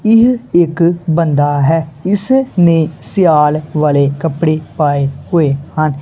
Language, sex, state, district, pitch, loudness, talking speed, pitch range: Punjabi, male, Punjab, Kapurthala, 160 Hz, -13 LUFS, 120 wpm, 150-175 Hz